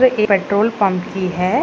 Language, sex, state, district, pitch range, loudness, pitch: Hindi, female, Bihar, Bhagalpur, 185-215 Hz, -17 LUFS, 200 Hz